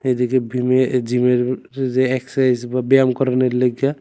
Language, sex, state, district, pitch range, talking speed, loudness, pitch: Bengali, male, Tripura, West Tripura, 125-130 Hz, 120 wpm, -18 LUFS, 130 Hz